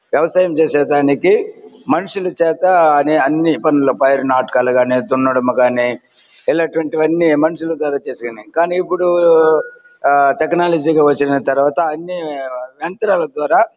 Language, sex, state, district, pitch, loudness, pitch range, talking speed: Telugu, male, Andhra Pradesh, Chittoor, 155 Hz, -15 LUFS, 135-175 Hz, 130 wpm